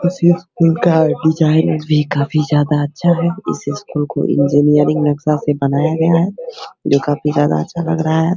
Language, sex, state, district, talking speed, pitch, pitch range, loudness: Hindi, male, Bihar, Begusarai, 200 wpm, 155 Hz, 145-165 Hz, -15 LUFS